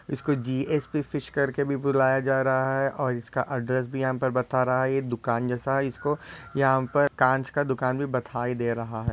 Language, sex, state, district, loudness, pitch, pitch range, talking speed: Hindi, male, Maharashtra, Solapur, -26 LUFS, 130 Hz, 125-140 Hz, 210 wpm